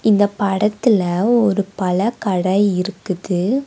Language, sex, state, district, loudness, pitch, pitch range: Tamil, female, Tamil Nadu, Nilgiris, -18 LUFS, 200 Hz, 185-220 Hz